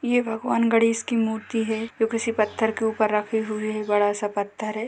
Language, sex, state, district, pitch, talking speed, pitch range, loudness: Hindi, female, Chhattisgarh, Bastar, 220 Hz, 220 wpm, 215-230 Hz, -24 LUFS